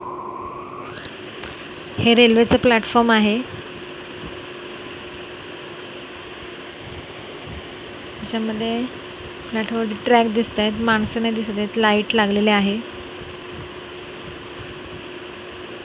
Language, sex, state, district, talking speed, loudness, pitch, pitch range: Marathi, female, Maharashtra, Mumbai Suburban, 50 wpm, -19 LUFS, 225 Hz, 215-235 Hz